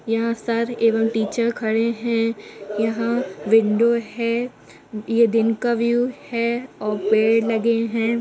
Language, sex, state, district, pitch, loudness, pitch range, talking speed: Hindi, female, Uttar Pradesh, Jalaun, 230 Hz, -21 LUFS, 225-235 Hz, 130 wpm